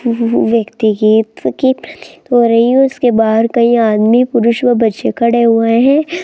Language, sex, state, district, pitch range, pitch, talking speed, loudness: Hindi, female, Rajasthan, Jaipur, 225-250 Hz, 235 Hz, 155 wpm, -12 LUFS